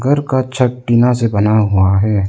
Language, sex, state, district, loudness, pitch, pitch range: Hindi, male, Arunachal Pradesh, Lower Dibang Valley, -14 LUFS, 120 Hz, 105-130 Hz